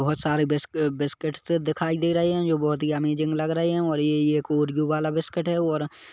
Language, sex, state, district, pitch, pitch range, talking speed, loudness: Hindi, male, Chhattisgarh, Kabirdham, 155 Hz, 150-165 Hz, 245 wpm, -24 LUFS